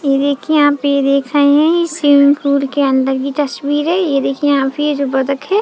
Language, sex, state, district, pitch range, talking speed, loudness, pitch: Hindi, female, Chhattisgarh, Bilaspur, 275-295 Hz, 245 wpm, -14 LUFS, 285 Hz